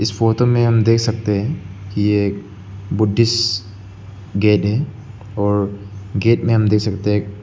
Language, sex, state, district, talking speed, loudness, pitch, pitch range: Hindi, male, Arunachal Pradesh, Lower Dibang Valley, 160 wpm, -17 LUFS, 105 Hz, 100-115 Hz